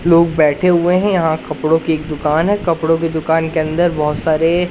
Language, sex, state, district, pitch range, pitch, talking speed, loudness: Hindi, male, Madhya Pradesh, Katni, 155-175 Hz, 160 Hz, 215 wpm, -15 LUFS